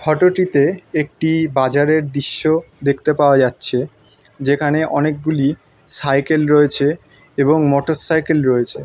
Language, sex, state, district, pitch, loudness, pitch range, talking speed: Bengali, male, West Bengal, North 24 Parganas, 145 Hz, -16 LUFS, 140-155 Hz, 110 wpm